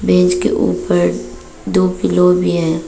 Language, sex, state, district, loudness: Hindi, female, Arunachal Pradesh, Papum Pare, -14 LUFS